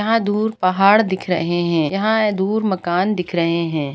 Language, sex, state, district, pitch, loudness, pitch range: Hindi, female, Bihar, Gaya, 190 Hz, -18 LUFS, 175-210 Hz